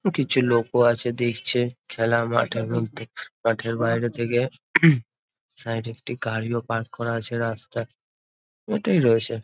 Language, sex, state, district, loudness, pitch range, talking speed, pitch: Bengali, male, West Bengal, North 24 Parganas, -24 LUFS, 115-120 Hz, 125 wpm, 115 Hz